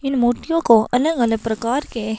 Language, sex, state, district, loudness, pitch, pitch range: Hindi, female, Himachal Pradesh, Shimla, -18 LUFS, 240 Hz, 225-275 Hz